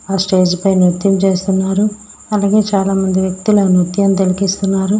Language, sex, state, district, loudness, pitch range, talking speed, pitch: Telugu, female, Andhra Pradesh, Srikakulam, -14 LUFS, 190-200 Hz, 145 wpm, 195 Hz